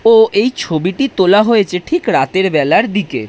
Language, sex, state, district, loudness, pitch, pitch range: Bengali, male, West Bengal, Dakshin Dinajpur, -13 LUFS, 205 Hz, 185-225 Hz